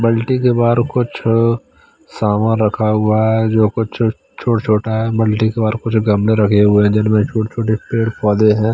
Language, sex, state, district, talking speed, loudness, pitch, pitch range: Hindi, male, Chandigarh, Chandigarh, 185 wpm, -15 LUFS, 110 Hz, 110-115 Hz